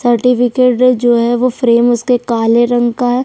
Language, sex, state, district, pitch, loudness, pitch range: Hindi, female, Chhattisgarh, Sukma, 240 Hz, -12 LUFS, 240-250 Hz